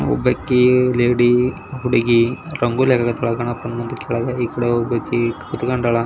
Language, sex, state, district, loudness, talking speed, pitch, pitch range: Kannada, male, Karnataka, Belgaum, -18 LUFS, 120 wpm, 120 Hz, 120-125 Hz